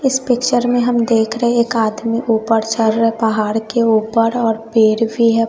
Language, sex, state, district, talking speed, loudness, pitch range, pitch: Hindi, female, Bihar, West Champaran, 205 wpm, -15 LUFS, 220-235 Hz, 230 Hz